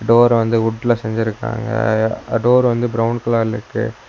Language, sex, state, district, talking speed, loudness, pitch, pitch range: Tamil, male, Tamil Nadu, Nilgiris, 130 wpm, -17 LUFS, 115 Hz, 110-120 Hz